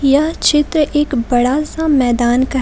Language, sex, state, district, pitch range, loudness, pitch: Hindi, female, Jharkhand, Palamu, 250-300 Hz, -14 LUFS, 280 Hz